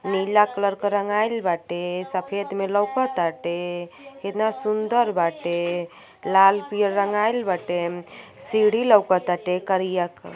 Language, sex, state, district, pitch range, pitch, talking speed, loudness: Bhojpuri, female, Uttar Pradesh, Gorakhpur, 175-210 Hz, 195 Hz, 115 wpm, -22 LUFS